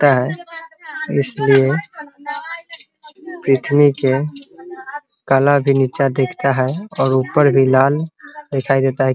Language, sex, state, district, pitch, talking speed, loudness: Hindi, male, Bihar, Muzaffarpur, 145 Hz, 125 wpm, -16 LUFS